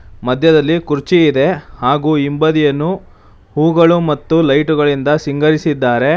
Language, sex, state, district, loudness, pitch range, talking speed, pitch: Kannada, male, Karnataka, Bangalore, -13 LUFS, 140-160 Hz, 95 wpm, 150 Hz